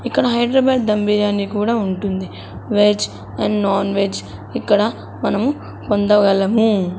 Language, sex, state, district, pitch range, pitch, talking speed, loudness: Telugu, female, Andhra Pradesh, Sri Satya Sai, 195-215 Hz, 205 Hz, 110 wpm, -17 LUFS